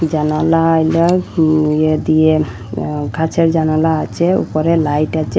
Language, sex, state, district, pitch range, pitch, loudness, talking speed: Bengali, female, Assam, Hailakandi, 155-165 Hz, 160 Hz, -15 LUFS, 135 wpm